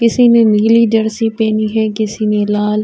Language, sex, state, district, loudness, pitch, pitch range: Urdu, female, Uttar Pradesh, Budaun, -13 LUFS, 220 Hz, 215-225 Hz